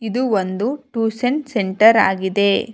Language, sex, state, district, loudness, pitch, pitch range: Kannada, female, Karnataka, Bangalore, -17 LUFS, 225 Hz, 200-245 Hz